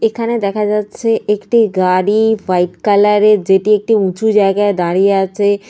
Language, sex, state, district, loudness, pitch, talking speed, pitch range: Bengali, female, Jharkhand, Sahebganj, -13 LUFS, 205 Hz, 145 wpm, 195-220 Hz